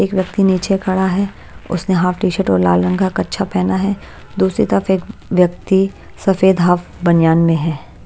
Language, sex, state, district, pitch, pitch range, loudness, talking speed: Hindi, female, Punjab, Kapurthala, 190 Hz, 175-195 Hz, -16 LUFS, 180 wpm